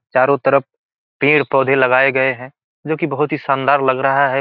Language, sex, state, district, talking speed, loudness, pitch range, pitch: Hindi, male, Bihar, Gopalganj, 190 wpm, -15 LUFS, 130-150 Hz, 135 Hz